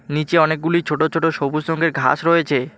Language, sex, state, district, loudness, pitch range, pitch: Bengali, male, West Bengal, Alipurduar, -18 LUFS, 145-165 Hz, 160 Hz